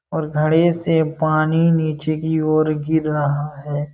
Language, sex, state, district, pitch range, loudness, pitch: Hindi, male, Uttar Pradesh, Jalaun, 150-160 Hz, -18 LUFS, 155 Hz